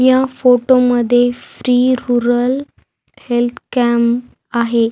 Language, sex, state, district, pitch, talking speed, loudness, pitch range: Marathi, female, Maharashtra, Aurangabad, 245 Hz, 95 wpm, -15 LUFS, 240-255 Hz